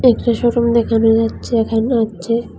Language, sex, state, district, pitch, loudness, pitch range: Bengali, female, Tripura, West Tripura, 230 Hz, -16 LUFS, 225-235 Hz